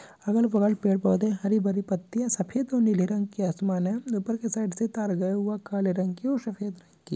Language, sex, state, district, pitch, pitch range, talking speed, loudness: Hindi, male, Jharkhand, Sahebganj, 205 Hz, 190-225 Hz, 210 wpm, -27 LUFS